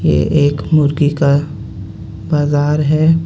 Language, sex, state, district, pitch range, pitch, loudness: Hindi, male, Jharkhand, Ranchi, 140-150 Hz, 145 Hz, -14 LUFS